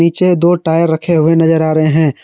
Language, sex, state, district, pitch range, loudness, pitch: Hindi, male, Jharkhand, Garhwa, 160-170 Hz, -12 LUFS, 165 Hz